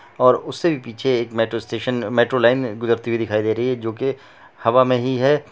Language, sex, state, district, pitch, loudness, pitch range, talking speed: Bhojpuri, male, Bihar, Saran, 125 Hz, -20 LUFS, 115-130 Hz, 215 wpm